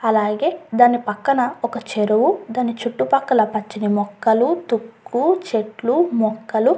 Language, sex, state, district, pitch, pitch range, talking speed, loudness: Telugu, female, Andhra Pradesh, Guntur, 230 Hz, 215-250 Hz, 115 wpm, -19 LUFS